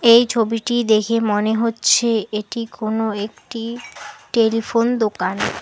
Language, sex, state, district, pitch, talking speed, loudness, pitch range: Bengali, female, West Bengal, Alipurduar, 225 Hz, 105 wpm, -19 LUFS, 215-235 Hz